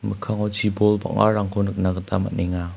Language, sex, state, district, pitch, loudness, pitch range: Garo, male, Meghalaya, West Garo Hills, 100 Hz, -22 LUFS, 95-105 Hz